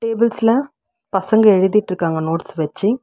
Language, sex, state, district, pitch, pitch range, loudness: Tamil, female, Tamil Nadu, Chennai, 210 Hz, 175-225 Hz, -17 LUFS